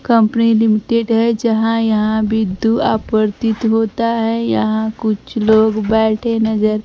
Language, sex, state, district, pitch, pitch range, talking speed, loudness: Hindi, female, Bihar, Kaimur, 220 Hz, 215-230 Hz, 130 wpm, -15 LUFS